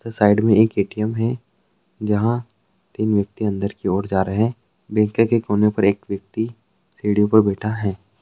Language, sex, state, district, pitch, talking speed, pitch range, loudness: Hindi, male, Andhra Pradesh, Krishna, 105 Hz, 175 wpm, 100-110 Hz, -20 LUFS